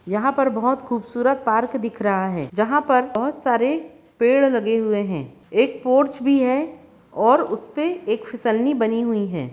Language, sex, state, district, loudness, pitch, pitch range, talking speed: Hindi, female, Jharkhand, Jamtara, -20 LUFS, 235 Hz, 215-265 Hz, 175 wpm